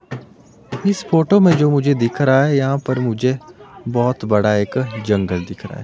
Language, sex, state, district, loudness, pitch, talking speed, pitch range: Hindi, male, Himachal Pradesh, Shimla, -17 LUFS, 130 Hz, 185 wpm, 110-145 Hz